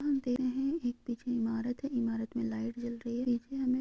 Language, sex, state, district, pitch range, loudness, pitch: Hindi, female, Andhra Pradesh, Krishna, 235-260 Hz, -34 LUFS, 245 Hz